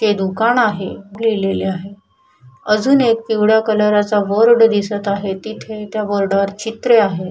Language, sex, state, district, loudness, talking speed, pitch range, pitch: Marathi, female, Maharashtra, Chandrapur, -16 LUFS, 155 wpm, 195-225 Hz, 210 Hz